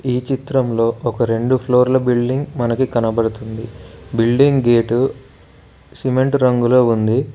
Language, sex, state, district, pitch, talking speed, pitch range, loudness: Telugu, male, Telangana, Mahabubabad, 125 Hz, 105 wpm, 115-130 Hz, -16 LUFS